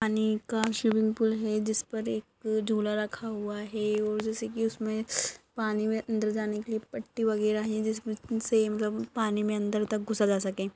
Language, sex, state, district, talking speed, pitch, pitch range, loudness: Hindi, female, Maharashtra, Dhule, 190 wpm, 220 Hz, 210-220 Hz, -30 LUFS